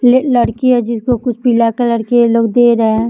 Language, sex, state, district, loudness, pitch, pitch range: Hindi, female, Bihar, Samastipur, -12 LUFS, 240 Hz, 230-245 Hz